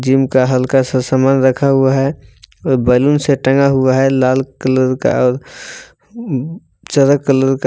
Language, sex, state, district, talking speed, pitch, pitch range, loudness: Hindi, male, Jharkhand, Palamu, 165 wpm, 135 Hz, 130-140 Hz, -13 LUFS